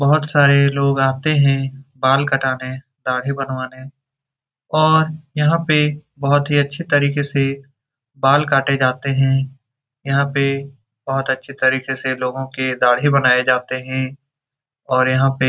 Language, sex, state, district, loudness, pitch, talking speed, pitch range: Hindi, male, Bihar, Saran, -17 LUFS, 135 Hz, 145 wpm, 130-140 Hz